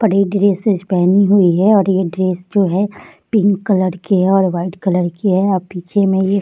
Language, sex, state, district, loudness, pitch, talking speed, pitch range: Hindi, female, Bihar, Jahanabad, -15 LUFS, 190 Hz, 225 wpm, 185-200 Hz